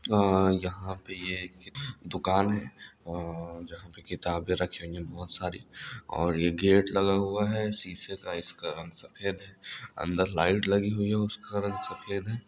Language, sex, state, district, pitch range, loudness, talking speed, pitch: Hindi, male, Andhra Pradesh, Anantapur, 85-100 Hz, -30 LUFS, 165 wpm, 95 Hz